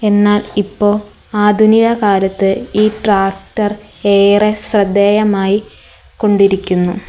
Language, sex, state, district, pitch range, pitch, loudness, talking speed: Malayalam, female, Kerala, Kollam, 200-210 Hz, 205 Hz, -13 LUFS, 75 wpm